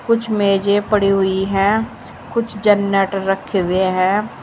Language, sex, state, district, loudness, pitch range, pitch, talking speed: Hindi, female, Uttar Pradesh, Saharanpur, -17 LUFS, 195-210 Hz, 200 Hz, 135 wpm